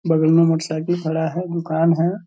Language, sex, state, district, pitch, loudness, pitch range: Hindi, male, Bihar, Purnia, 165 Hz, -19 LUFS, 160-170 Hz